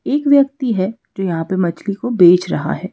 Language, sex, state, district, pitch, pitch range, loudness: Hindi, female, Madhya Pradesh, Bhopal, 195 Hz, 180-245 Hz, -16 LUFS